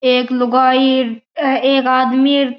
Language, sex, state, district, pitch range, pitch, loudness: Marwari, male, Rajasthan, Churu, 255-265 Hz, 260 Hz, -14 LUFS